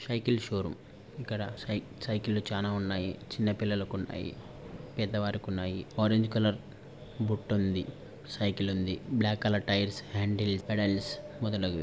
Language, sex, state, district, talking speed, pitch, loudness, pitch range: Telugu, male, Andhra Pradesh, Anantapur, 125 wpm, 105 Hz, -32 LUFS, 100-115 Hz